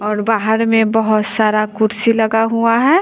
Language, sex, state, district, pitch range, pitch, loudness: Hindi, female, Bihar, West Champaran, 215-225 Hz, 220 Hz, -15 LUFS